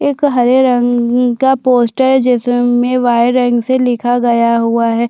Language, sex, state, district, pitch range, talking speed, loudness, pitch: Hindi, female, Chhattisgarh, Sukma, 240-255 Hz, 155 wpm, -12 LUFS, 245 Hz